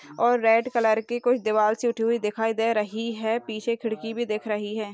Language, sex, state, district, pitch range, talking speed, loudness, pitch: Hindi, female, Rajasthan, Churu, 215-235 Hz, 230 wpm, -25 LUFS, 225 Hz